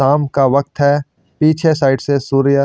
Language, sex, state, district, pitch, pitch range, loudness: Hindi, male, Chandigarh, Chandigarh, 140 Hz, 135-145 Hz, -15 LUFS